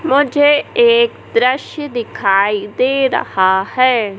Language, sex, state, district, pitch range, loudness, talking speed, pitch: Hindi, male, Madhya Pradesh, Katni, 205-290 Hz, -14 LUFS, 100 wpm, 255 Hz